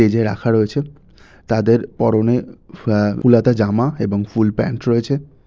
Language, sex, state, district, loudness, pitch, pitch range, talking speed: Bengali, male, West Bengal, North 24 Parganas, -17 LUFS, 115 Hz, 105-125 Hz, 165 wpm